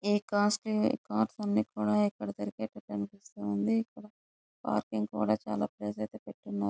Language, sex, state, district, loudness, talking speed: Telugu, female, Andhra Pradesh, Chittoor, -32 LUFS, 145 wpm